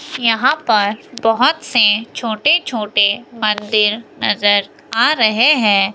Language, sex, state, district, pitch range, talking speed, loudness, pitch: Hindi, female, Himachal Pradesh, Shimla, 210-240 Hz, 110 wpm, -15 LUFS, 225 Hz